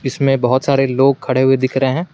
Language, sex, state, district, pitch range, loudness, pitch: Hindi, male, Jharkhand, Garhwa, 130-135 Hz, -15 LUFS, 135 Hz